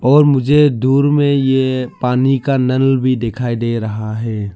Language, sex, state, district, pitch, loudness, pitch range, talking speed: Hindi, male, Arunachal Pradesh, Lower Dibang Valley, 130 Hz, -15 LUFS, 115-135 Hz, 170 wpm